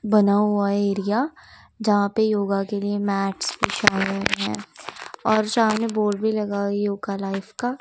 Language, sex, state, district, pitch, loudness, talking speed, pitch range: Hindi, female, Punjab, Kapurthala, 205 Hz, -22 LUFS, 160 wpm, 200-215 Hz